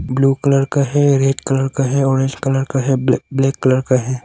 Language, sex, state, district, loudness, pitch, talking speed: Hindi, male, Arunachal Pradesh, Longding, -16 LUFS, 135 Hz, 240 wpm